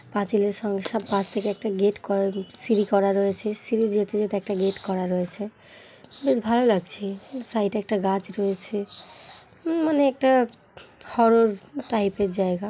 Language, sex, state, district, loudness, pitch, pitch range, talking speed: Bengali, female, West Bengal, Kolkata, -24 LUFS, 205 Hz, 195-225 Hz, 155 wpm